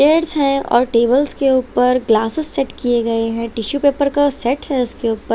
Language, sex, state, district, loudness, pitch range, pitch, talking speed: Hindi, female, Chhattisgarh, Raipur, -16 LUFS, 235-285 Hz, 255 Hz, 190 wpm